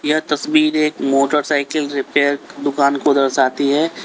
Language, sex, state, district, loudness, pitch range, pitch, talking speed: Hindi, male, Uttar Pradesh, Lalitpur, -17 LUFS, 140-150 Hz, 145 Hz, 135 wpm